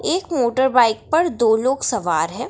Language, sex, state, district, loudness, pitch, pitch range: Hindi, female, Bihar, Darbhanga, -18 LUFS, 260 Hz, 240-320 Hz